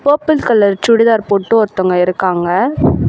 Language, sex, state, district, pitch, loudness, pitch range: Tamil, female, Tamil Nadu, Chennai, 215 Hz, -13 LUFS, 185-235 Hz